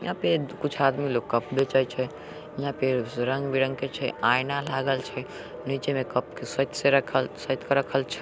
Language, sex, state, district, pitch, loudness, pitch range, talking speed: Angika, male, Bihar, Samastipur, 135 Hz, -27 LUFS, 130-140 Hz, 190 wpm